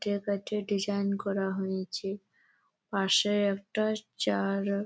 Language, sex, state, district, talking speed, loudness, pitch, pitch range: Bengali, female, West Bengal, Malda, 100 wpm, -30 LUFS, 200 Hz, 195-205 Hz